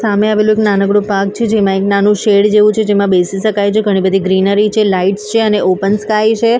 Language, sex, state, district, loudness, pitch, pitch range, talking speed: Gujarati, female, Maharashtra, Mumbai Suburban, -12 LUFS, 205 Hz, 195-215 Hz, 225 wpm